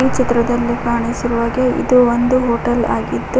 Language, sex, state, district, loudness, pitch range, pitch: Kannada, female, Karnataka, Koppal, -16 LUFS, 235-255 Hz, 240 Hz